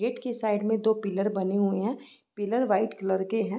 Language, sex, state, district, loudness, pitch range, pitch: Hindi, female, Uttar Pradesh, Varanasi, -27 LUFS, 195-225 Hz, 210 Hz